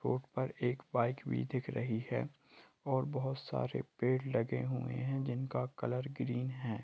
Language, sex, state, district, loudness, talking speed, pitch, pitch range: Hindi, male, Jharkhand, Sahebganj, -37 LUFS, 160 wpm, 130 Hz, 120-135 Hz